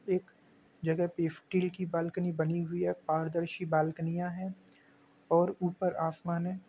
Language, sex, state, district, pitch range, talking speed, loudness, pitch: Hindi, male, Bihar, East Champaran, 165-180 Hz, 145 wpm, -33 LUFS, 170 Hz